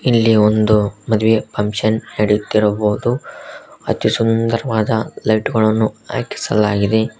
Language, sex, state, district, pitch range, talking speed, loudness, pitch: Kannada, male, Karnataka, Koppal, 105-115 Hz, 85 wpm, -16 LUFS, 110 Hz